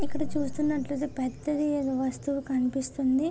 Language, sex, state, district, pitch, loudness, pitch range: Telugu, female, Andhra Pradesh, Srikakulam, 280 Hz, -29 LUFS, 265-295 Hz